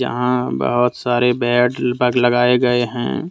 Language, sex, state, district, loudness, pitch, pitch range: Hindi, male, Jharkhand, Deoghar, -17 LUFS, 125 Hz, 120-125 Hz